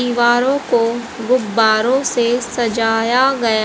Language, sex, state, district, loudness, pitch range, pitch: Hindi, female, Haryana, Jhajjar, -16 LUFS, 230-250 Hz, 240 Hz